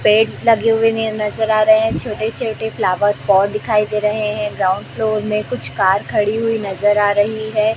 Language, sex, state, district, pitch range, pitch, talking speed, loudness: Hindi, female, Chhattisgarh, Raipur, 205-220 Hz, 215 Hz, 210 wpm, -17 LUFS